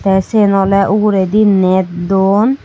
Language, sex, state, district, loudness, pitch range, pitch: Chakma, female, Tripura, Unakoti, -12 LUFS, 190-210 Hz, 195 Hz